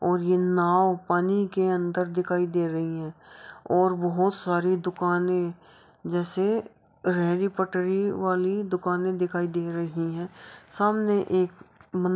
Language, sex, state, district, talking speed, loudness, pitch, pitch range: Hindi, female, Uttar Pradesh, Jyotiba Phule Nagar, 135 wpm, -26 LUFS, 180 Hz, 175-185 Hz